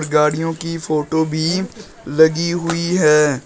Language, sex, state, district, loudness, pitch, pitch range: Hindi, male, Uttar Pradesh, Shamli, -17 LUFS, 160 Hz, 150-170 Hz